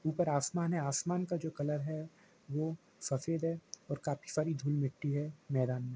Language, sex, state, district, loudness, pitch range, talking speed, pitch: Hindi, male, Jharkhand, Jamtara, -36 LUFS, 145-165 Hz, 180 wpm, 155 Hz